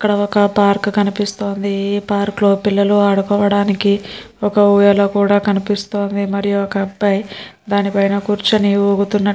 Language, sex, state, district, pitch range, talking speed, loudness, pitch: Telugu, female, Andhra Pradesh, Srikakulam, 200-205 Hz, 135 wpm, -15 LUFS, 200 Hz